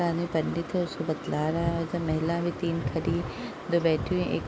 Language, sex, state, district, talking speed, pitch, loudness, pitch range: Hindi, female, Uttar Pradesh, Deoria, 270 wpm, 170 Hz, -29 LUFS, 160-170 Hz